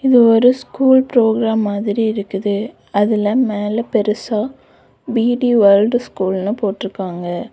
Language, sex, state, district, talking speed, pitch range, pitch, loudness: Tamil, female, Tamil Nadu, Kanyakumari, 105 wpm, 200-240 Hz, 215 Hz, -16 LUFS